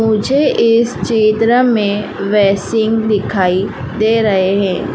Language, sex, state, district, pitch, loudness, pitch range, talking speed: Hindi, female, Madhya Pradesh, Dhar, 215 Hz, -13 LUFS, 200-225 Hz, 95 wpm